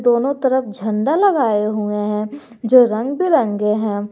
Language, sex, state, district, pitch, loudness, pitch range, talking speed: Hindi, female, Jharkhand, Garhwa, 225 Hz, -17 LUFS, 210-260 Hz, 145 wpm